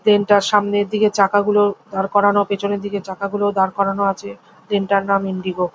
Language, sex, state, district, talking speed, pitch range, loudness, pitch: Bengali, female, West Bengal, Jhargram, 210 wpm, 195-205 Hz, -18 LUFS, 200 Hz